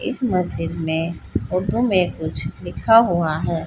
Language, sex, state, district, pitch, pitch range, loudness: Hindi, female, Haryana, Rohtak, 170 Hz, 160-195 Hz, -20 LUFS